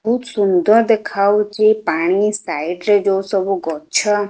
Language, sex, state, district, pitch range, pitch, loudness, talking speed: Odia, female, Odisha, Khordha, 190-215 Hz, 205 Hz, -16 LUFS, 110 wpm